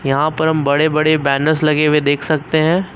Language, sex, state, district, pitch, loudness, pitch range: Hindi, male, Uttar Pradesh, Lucknow, 155 Hz, -15 LUFS, 145-155 Hz